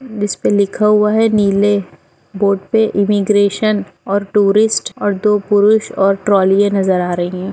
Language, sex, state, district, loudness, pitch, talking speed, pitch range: Hindi, female, Bihar, Lakhisarai, -14 LUFS, 205 Hz, 160 wpm, 195-210 Hz